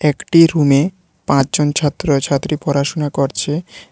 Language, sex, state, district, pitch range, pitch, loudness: Bengali, male, Tripura, West Tripura, 140-165 Hz, 150 Hz, -16 LUFS